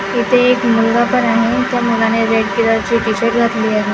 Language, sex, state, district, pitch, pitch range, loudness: Marathi, female, Maharashtra, Gondia, 230 Hz, 225-240 Hz, -14 LUFS